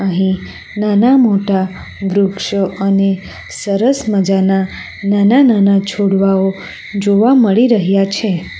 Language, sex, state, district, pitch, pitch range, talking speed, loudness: Gujarati, female, Gujarat, Valsad, 200 Hz, 195-210 Hz, 100 wpm, -13 LUFS